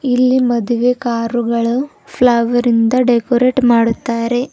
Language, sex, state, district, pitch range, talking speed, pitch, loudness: Kannada, female, Karnataka, Bidar, 235-250 Hz, 80 wpm, 240 Hz, -14 LUFS